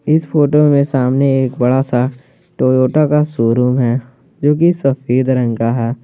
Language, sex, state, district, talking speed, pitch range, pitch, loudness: Hindi, male, Jharkhand, Garhwa, 160 wpm, 125-145 Hz, 130 Hz, -14 LUFS